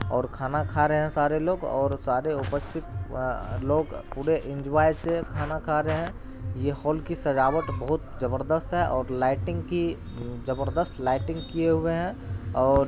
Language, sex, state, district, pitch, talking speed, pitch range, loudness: Hindi, male, Bihar, Araria, 140 Hz, 170 wpm, 120-155 Hz, -27 LUFS